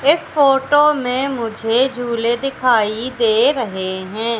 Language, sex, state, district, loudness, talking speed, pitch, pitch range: Hindi, female, Madhya Pradesh, Katni, -17 LUFS, 125 wpm, 250 Hz, 230-280 Hz